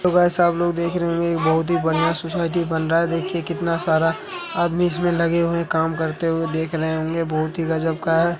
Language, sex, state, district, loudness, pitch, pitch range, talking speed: Hindi, male, Bihar, Begusarai, -21 LUFS, 170 Hz, 160-170 Hz, 215 wpm